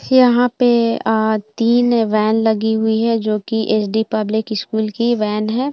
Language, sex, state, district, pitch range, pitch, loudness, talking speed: Hindi, female, Bihar, Bhagalpur, 215-235 Hz, 220 Hz, -16 LUFS, 170 wpm